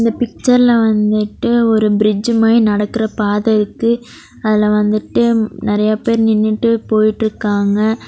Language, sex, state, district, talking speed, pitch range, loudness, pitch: Tamil, female, Tamil Nadu, Nilgiris, 110 wpm, 210-230 Hz, -14 LUFS, 220 Hz